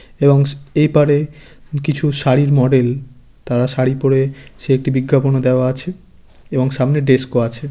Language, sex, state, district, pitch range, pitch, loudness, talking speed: Bengali, male, West Bengal, Kolkata, 130-145 Hz, 135 Hz, -16 LUFS, 165 wpm